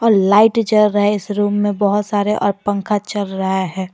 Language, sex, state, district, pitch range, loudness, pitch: Hindi, female, Jharkhand, Garhwa, 200-210 Hz, -16 LUFS, 205 Hz